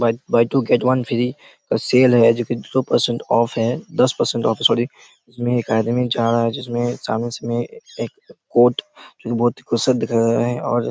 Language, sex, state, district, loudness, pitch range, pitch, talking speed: Hindi, male, Chhattisgarh, Raigarh, -19 LUFS, 115-125 Hz, 120 Hz, 150 wpm